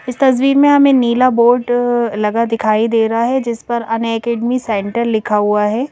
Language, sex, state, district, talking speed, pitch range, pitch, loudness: Hindi, female, Madhya Pradesh, Bhopal, 195 wpm, 225-250 Hz, 235 Hz, -14 LUFS